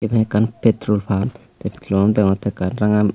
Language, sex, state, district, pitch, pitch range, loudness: Chakma, male, Tripura, Unakoti, 105 Hz, 100-110 Hz, -18 LUFS